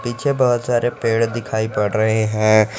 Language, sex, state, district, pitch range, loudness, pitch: Hindi, male, Jharkhand, Garhwa, 110-120 Hz, -18 LUFS, 115 Hz